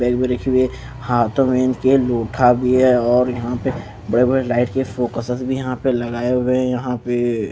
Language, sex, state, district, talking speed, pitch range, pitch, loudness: Hindi, male, Maharashtra, Mumbai Suburban, 215 wpm, 120-130 Hz, 125 Hz, -18 LUFS